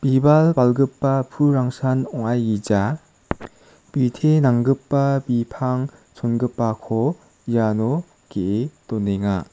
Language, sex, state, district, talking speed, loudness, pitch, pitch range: Garo, male, Meghalaya, South Garo Hills, 70 wpm, -20 LUFS, 125 Hz, 115-140 Hz